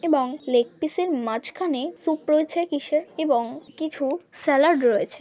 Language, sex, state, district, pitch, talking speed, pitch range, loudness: Bengali, female, West Bengal, Dakshin Dinajpur, 300 Hz, 140 wpm, 275-320 Hz, -23 LUFS